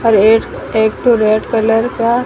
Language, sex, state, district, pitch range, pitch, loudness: Hindi, female, Odisha, Sambalpur, 220-235 Hz, 225 Hz, -13 LUFS